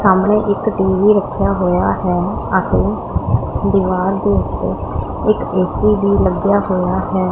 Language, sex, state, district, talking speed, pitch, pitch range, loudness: Punjabi, female, Punjab, Pathankot, 130 wpm, 190 Hz, 185-205 Hz, -16 LUFS